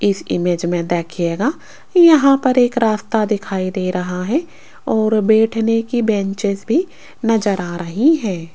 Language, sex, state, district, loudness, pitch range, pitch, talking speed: Hindi, female, Rajasthan, Jaipur, -17 LUFS, 185-235 Hz, 215 Hz, 145 wpm